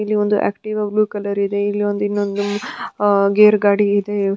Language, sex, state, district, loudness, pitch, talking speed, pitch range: Kannada, female, Karnataka, Dharwad, -17 LUFS, 205 Hz, 150 wpm, 205-210 Hz